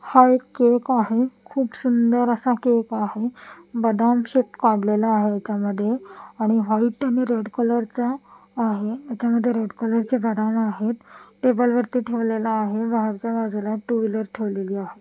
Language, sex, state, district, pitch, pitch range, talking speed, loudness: Marathi, female, Maharashtra, Washim, 230 Hz, 220-245 Hz, 150 wpm, -22 LUFS